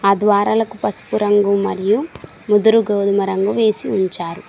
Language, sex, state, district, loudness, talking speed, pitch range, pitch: Telugu, female, Telangana, Mahabubabad, -17 LUFS, 135 wpm, 200-215 Hz, 205 Hz